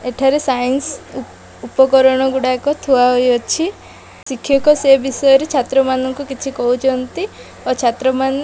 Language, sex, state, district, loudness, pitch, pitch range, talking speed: Odia, female, Odisha, Malkangiri, -15 LUFS, 265 Hz, 255-275 Hz, 105 wpm